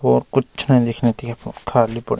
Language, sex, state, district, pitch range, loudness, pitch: Garhwali, male, Uttarakhand, Uttarkashi, 115-125 Hz, -18 LUFS, 120 Hz